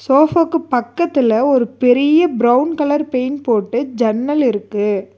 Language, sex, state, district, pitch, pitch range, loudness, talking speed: Tamil, female, Tamil Nadu, Nilgiris, 255 Hz, 235-295 Hz, -15 LUFS, 115 wpm